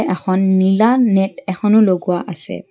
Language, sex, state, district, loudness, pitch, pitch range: Assamese, female, Assam, Kamrup Metropolitan, -15 LUFS, 195 Hz, 185-210 Hz